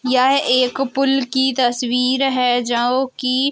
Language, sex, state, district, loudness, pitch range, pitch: Hindi, female, Uttar Pradesh, Jalaun, -17 LUFS, 250-270 Hz, 255 Hz